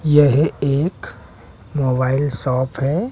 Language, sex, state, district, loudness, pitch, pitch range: Hindi, male, Bihar, West Champaran, -18 LUFS, 140 Hz, 130-150 Hz